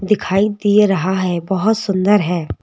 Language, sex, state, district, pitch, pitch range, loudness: Hindi, female, Madhya Pradesh, Bhopal, 190 Hz, 180-205 Hz, -16 LUFS